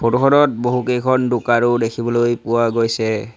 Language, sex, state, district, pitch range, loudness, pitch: Assamese, male, Assam, Sonitpur, 115-125 Hz, -17 LUFS, 120 Hz